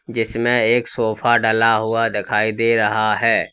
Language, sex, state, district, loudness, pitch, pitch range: Hindi, male, Uttar Pradesh, Lalitpur, -17 LUFS, 115 Hz, 110-115 Hz